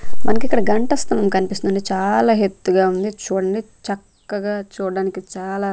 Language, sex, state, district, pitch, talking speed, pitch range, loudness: Telugu, female, Andhra Pradesh, Manyam, 200 Hz, 105 wpm, 190-215 Hz, -20 LUFS